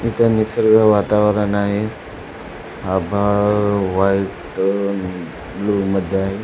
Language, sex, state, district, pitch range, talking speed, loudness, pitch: Marathi, male, Maharashtra, Sindhudurg, 95-105 Hz, 75 wpm, -17 LUFS, 100 Hz